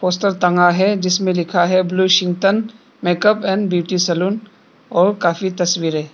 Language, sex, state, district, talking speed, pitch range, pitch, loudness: Hindi, male, Arunachal Pradesh, Papum Pare, 135 wpm, 175-195 Hz, 185 Hz, -16 LUFS